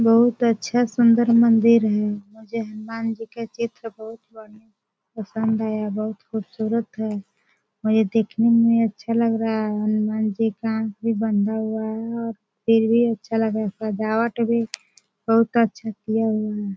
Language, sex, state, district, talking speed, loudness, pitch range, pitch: Hindi, female, Chhattisgarh, Korba, 165 wpm, -21 LUFS, 215-230 Hz, 220 Hz